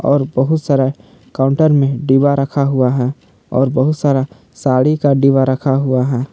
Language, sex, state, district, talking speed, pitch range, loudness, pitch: Hindi, male, Jharkhand, Palamu, 170 wpm, 130-140 Hz, -14 LUFS, 135 Hz